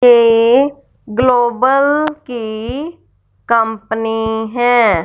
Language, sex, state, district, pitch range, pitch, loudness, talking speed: Hindi, female, Punjab, Fazilka, 225-260 Hz, 240 Hz, -14 LUFS, 60 wpm